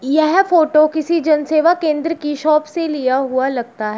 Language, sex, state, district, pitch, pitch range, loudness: Hindi, female, Uttar Pradesh, Shamli, 305 Hz, 270-325 Hz, -16 LUFS